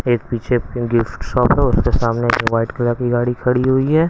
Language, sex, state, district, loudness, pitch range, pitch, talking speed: Hindi, male, Haryana, Rohtak, -17 LUFS, 115-125 Hz, 120 Hz, 220 wpm